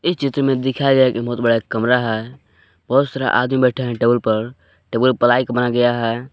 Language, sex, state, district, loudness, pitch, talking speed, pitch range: Hindi, male, Jharkhand, Palamu, -17 LUFS, 125 Hz, 220 wpm, 115-130 Hz